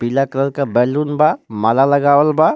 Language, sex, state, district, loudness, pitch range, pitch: Bhojpuri, male, Jharkhand, Palamu, -15 LUFS, 130-150 Hz, 140 Hz